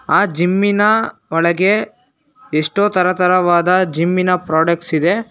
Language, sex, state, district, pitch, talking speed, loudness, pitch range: Kannada, male, Karnataka, Bangalore, 180 Hz, 100 wpm, -15 LUFS, 170-205 Hz